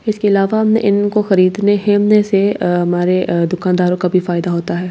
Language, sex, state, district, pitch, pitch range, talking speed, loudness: Hindi, female, Delhi, New Delhi, 190 Hz, 180-205 Hz, 185 wpm, -14 LUFS